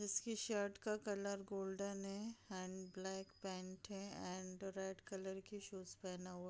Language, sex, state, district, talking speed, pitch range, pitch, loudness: Hindi, female, Bihar, Madhepura, 165 wpm, 190-200 Hz, 195 Hz, -47 LUFS